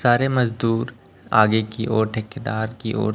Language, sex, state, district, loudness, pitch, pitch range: Hindi, male, Chhattisgarh, Raipur, -21 LUFS, 115 Hz, 110-120 Hz